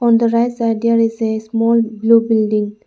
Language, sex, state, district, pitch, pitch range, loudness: English, female, Arunachal Pradesh, Lower Dibang Valley, 230 Hz, 220-230 Hz, -15 LUFS